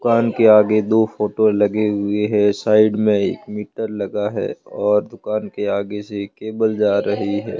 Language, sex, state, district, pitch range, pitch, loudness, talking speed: Hindi, male, Rajasthan, Jaisalmer, 105-110 Hz, 105 Hz, -18 LUFS, 190 wpm